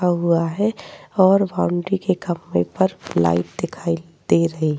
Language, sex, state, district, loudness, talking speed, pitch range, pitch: Hindi, female, Uttar Pradesh, Jyotiba Phule Nagar, -20 LUFS, 150 wpm, 165-190 Hz, 170 Hz